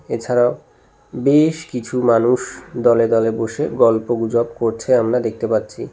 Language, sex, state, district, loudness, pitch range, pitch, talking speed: Bengali, male, West Bengal, Cooch Behar, -17 LUFS, 115-125 Hz, 120 Hz, 120 wpm